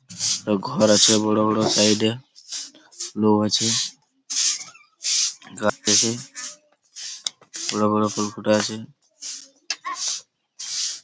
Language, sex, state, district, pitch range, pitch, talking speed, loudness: Bengali, male, West Bengal, Malda, 105-150 Hz, 110 Hz, 85 wpm, -21 LUFS